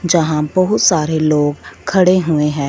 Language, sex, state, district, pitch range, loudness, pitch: Hindi, female, Punjab, Fazilka, 150-185 Hz, -14 LUFS, 160 Hz